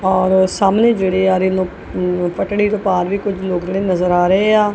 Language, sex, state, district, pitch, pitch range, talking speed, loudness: Punjabi, female, Punjab, Kapurthala, 190 Hz, 185-200 Hz, 215 wpm, -16 LUFS